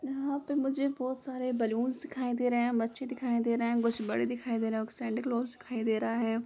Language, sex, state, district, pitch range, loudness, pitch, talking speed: Hindi, female, Bihar, Sitamarhi, 230-260 Hz, -32 LUFS, 240 Hz, 240 wpm